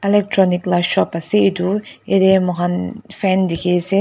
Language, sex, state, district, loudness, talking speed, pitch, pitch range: Nagamese, female, Nagaland, Dimapur, -17 LUFS, 150 wpm, 190 Hz, 180-200 Hz